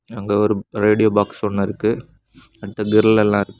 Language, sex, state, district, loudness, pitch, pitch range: Tamil, male, Tamil Nadu, Kanyakumari, -18 LUFS, 105 Hz, 100-110 Hz